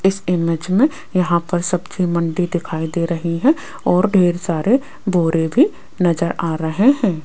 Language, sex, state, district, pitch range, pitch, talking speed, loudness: Hindi, female, Rajasthan, Jaipur, 170-195 Hz, 180 Hz, 165 wpm, -18 LUFS